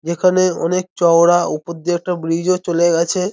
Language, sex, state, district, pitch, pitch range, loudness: Bengali, male, West Bengal, North 24 Parganas, 175 Hz, 170-185 Hz, -16 LUFS